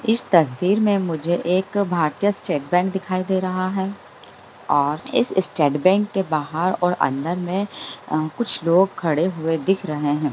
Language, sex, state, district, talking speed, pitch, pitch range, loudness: Hindi, female, Bihar, Bhagalpur, 170 wpm, 180 Hz, 155-190 Hz, -21 LUFS